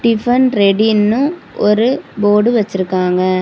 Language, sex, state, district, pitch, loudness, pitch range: Tamil, female, Tamil Nadu, Kanyakumari, 215 Hz, -14 LUFS, 200-240 Hz